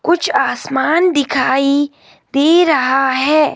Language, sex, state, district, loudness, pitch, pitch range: Hindi, female, Himachal Pradesh, Shimla, -14 LUFS, 285 Hz, 265-315 Hz